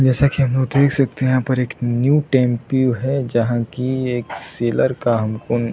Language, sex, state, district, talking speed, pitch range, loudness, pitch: Hindi, male, Bihar, Saran, 220 wpm, 120-130 Hz, -18 LUFS, 130 Hz